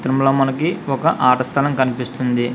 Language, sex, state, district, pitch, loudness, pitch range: Telugu, male, Andhra Pradesh, Srikakulam, 135 Hz, -18 LUFS, 125-140 Hz